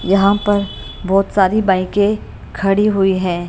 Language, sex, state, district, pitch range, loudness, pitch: Hindi, female, Bihar, Katihar, 190-205 Hz, -16 LUFS, 195 Hz